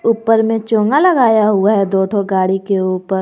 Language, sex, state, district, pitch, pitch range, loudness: Hindi, male, Jharkhand, Garhwa, 210 Hz, 190-225 Hz, -14 LUFS